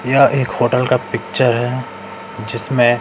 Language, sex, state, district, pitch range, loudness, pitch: Hindi, male, Bihar, West Champaran, 120-130 Hz, -16 LUFS, 125 Hz